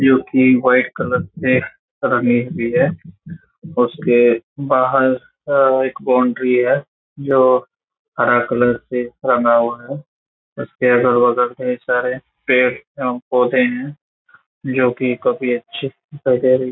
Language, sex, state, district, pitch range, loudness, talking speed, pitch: Hindi, male, Bihar, Saran, 125-130 Hz, -17 LUFS, 110 wpm, 125 Hz